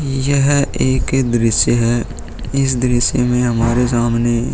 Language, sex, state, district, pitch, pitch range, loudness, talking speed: Hindi, male, Uttar Pradesh, Muzaffarnagar, 120 Hz, 120-130 Hz, -15 LUFS, 130 wpm